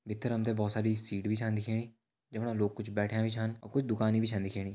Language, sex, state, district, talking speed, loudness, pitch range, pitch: Hindi, male, Uttarakhand, Tehri Garhwal, 265 wpm, -33 LUFS, 105-115 Hz, 110 Hz